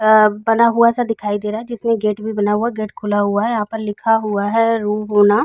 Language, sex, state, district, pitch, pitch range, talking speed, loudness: Hindi, female, Uttar Pradesh, Jalaun, 215 Hz, 210-230 Hz, 240 wpm, -17 LUFS